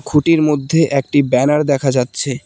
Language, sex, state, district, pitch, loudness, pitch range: Bengali, male, West Bengal, Cooch Behar, 145 Hz, -15 LUFS, 135-150 Hz